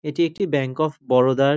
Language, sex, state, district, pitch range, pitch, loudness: Bengali, male, West Bengal, North 24 Parganas, 130-155 Hz, 145 Hz, -21 LUFS